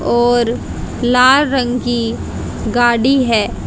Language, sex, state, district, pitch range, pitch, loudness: Hindi, female, Haryana, Jhajjar, 240-255 Hz, 245 Hz, -14 LUFS